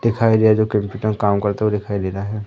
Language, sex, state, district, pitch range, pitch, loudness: Hindi, male, Madhya Pradesh, Umaria, 100-110 Hz, 105 Hz, -18 LUFS